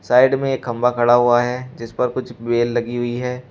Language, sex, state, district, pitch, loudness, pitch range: Hindi, male, Uttar Pradesh, Shamli, 120 Hz, -18 LUFS, 120-125 Hz